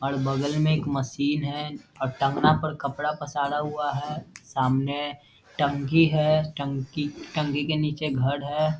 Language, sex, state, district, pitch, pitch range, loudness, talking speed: Hindi, male, Bihar, Vaishali, 145 Hz, 140-150 Hz, -26 LUFS, 155 wpm